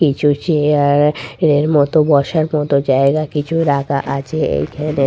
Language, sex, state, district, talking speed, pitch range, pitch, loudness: Bengali, female, West Bengal, Purulia, 130 wpm, 140-155 Hz, 145 Hz, -15 LUFS